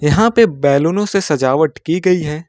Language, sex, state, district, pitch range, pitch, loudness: Hindi, male, Jharkhand, Ranchi, 150-195 Hz, 160 Hz, -14 LUFS